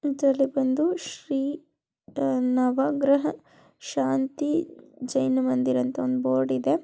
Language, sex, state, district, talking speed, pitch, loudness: Kannada, female, Karnataka, Dharwad, 95 wpm, 270 Hz, -25 LUFS